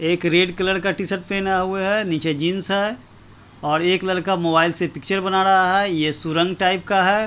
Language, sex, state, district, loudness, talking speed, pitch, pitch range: Hindi, male, Bihar, Patna, -18 LUFS, 205 wpm, 185 Hz, 165-195 Hz